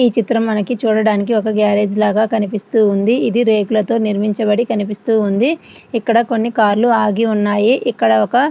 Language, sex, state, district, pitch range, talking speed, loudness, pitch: Telugu, female, Andhra Pradesh, Srikakulam, 210-230 Hz, 155 wpm, -15 LUFS, 220 Hz